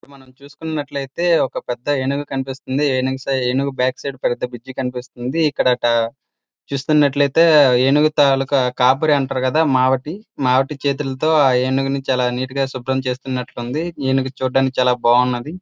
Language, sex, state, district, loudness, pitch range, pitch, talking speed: Telugu, male, Andhra Pradesh, Srikakulam, -18 LUFS, 130-145 Hz, 135 Hz, 125 wpm